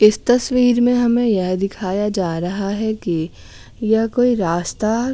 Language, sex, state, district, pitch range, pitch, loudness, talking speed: Hindi, female, Bihar, Patna, 190-240 Hz, 215 Hz, -18 LUFS, 150 wpm